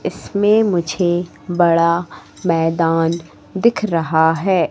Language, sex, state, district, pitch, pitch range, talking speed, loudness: Hindi, female, Madhya Pradesh, Katni, 170 Hz, 165-190 Hz, 90 wpm, -17 LUFS